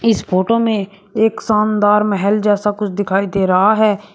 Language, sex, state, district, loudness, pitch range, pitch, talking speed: Hindi, male, Uttar Pradesh, Shamli, -15 LUFS, 200-215 Hz, 205 Hz, 175 wpm